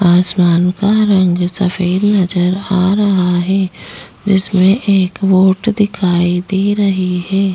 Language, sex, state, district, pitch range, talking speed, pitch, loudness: Hindi, female, Chhattisgarh, Jashpur, 180-195 Hz, 120 wpm, 190 Hz, -13 LUFS